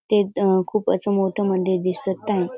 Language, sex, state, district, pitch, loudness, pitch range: Marathi, female, Maharashtra, Dhule, 195 Hz, -21 LUFS, 185-205 Hz